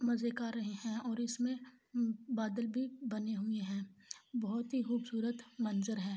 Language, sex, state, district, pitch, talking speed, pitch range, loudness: Urdu, female, Andhra Pradesh, Anantapur, 230 Hz, 135 wpm, 220-240 Hz, -39 LUFS